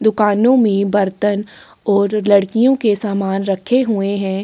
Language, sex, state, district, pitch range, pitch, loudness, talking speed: Hindi, female, Chhattisgarh, Sukma, 200-215 Hz, 205 Hz, -16 LUFS, 135 wpm